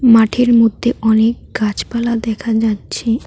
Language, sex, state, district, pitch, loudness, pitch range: Bengali, female, West Bengal, Cooch Behar, 230 Hz, -15 LUFS, 220-235 Hz